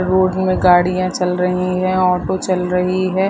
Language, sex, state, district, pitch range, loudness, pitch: Hindi, female, Bihar, Madhepura, 180-185 Hz, -16 LUFS, 185 Hz